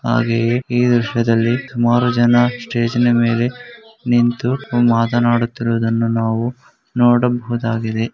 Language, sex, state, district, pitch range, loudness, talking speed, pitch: Kannada, male, Karnataka, Gulbarga, 115-120 Hz, -16 LUFS, 90 wpm, 120 Hz